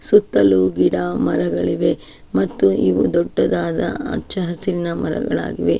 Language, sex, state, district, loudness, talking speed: Kannada, female, Karnataka, Shimoga, -18 LUFS, 95 wpm